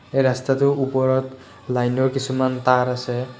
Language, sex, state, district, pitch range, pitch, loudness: Assamese, male, Assam, Kamrup Metropolitan, 125-130 Hz, 130 Hz, -21 LUFS